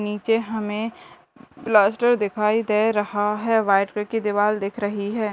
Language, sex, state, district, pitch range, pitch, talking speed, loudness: Hindi, female, Bihar, Gopalganj, 205-225 Hz, 210 Hz, 170 wpm, -22 LUFS